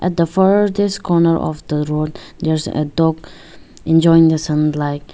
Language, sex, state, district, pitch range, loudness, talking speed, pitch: English, female, Arunachal Pradesh, Lower Dibang Valley, 150-170 Hz, -16 LUFS, 150 wpm, 160 Hz